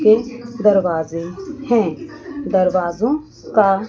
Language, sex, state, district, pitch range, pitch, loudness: Hindi, female, Chandigarh, Chandigarh, 185-245 Hz, 215 Hz, -18 LUFS